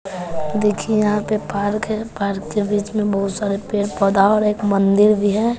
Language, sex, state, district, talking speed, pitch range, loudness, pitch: Hindi, female, Bihar, West Champaran, 195 wpm, 200-210 Hz, -19 LUFS, 205 Hz